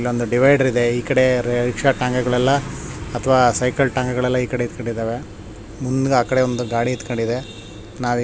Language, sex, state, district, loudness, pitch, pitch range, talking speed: Kannada, male, Karnataka, Shimoga, -19 LUFS, 125 Hz, 120-130 Hz, 160 wpm